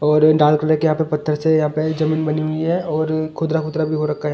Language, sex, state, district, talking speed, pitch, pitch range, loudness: Hindi, male, Delhi, New Delhi, 275 wpm, 155 Hz, 150-160 Hz, -18 LUFS